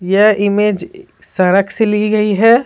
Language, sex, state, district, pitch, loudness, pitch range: Hindi, female, Bihar, Patna, 210 Hz, -13 LUFS, 195-215 Hz